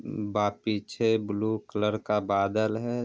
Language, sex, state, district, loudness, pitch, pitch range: Hindi, male, Bihar, Vaishali, -28 LUFS, 105 Hz, 105-110 Hz